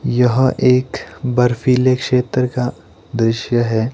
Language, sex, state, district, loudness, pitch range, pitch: Hindi, male, Himachal Pradesh, Shimla, -16 LUFS, 115-125 Hz, 125 Hz